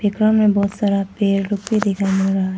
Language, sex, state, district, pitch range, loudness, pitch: Hindi, female, Arunachal Pradesh, Papum Pare, 195-210 Hz, -18 LUFS, 200 Hz